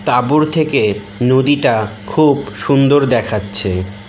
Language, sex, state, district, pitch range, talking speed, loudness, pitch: Bengali, male, West Bengal, Cooch Behar, 100-145 Hz, 90 wpm, -14 LUFS, 125 Hz